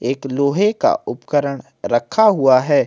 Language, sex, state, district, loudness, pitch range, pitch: Hindi, male, Uttar Pradesh, Jalaun, -17 LUFS, 135-220 Hz, 140 Hz